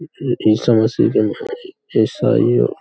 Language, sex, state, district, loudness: Hindi, male, Uttar Pradesh, Hamirpur, -16 LUFS